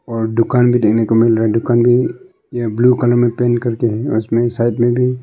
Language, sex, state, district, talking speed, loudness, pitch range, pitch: Hindi, male, Arunachal Pradesh, Longding, 250 wpm, -15 LUFS, 115-120 Hz, 120 Hz